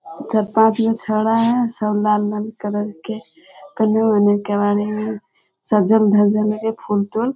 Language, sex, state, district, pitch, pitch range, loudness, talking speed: Hindi, female, Bihar, Jamui, 215 Hz, 210-225 Hz, -18 LUFS, 140 wpm